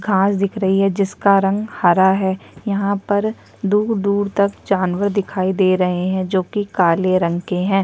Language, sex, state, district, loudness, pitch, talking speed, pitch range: Hindi, female, Uttarakhand, Tehri Garhwal, -18 LUFS, 195 Hz, 170 wpm, 185-200 Hz